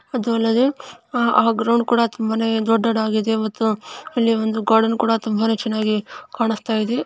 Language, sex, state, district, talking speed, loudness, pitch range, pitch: Kannada, female, Karnataka, Chamarajanagar, 135 wpm, -19 LUFS, 220-235 Hz, 225 Hz